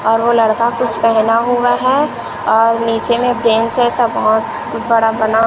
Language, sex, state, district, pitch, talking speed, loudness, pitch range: Hindi, female, Chhattisgarh, Raipur, 230 Hz, 165 wpm, -14 LUFS, 225-240 Hz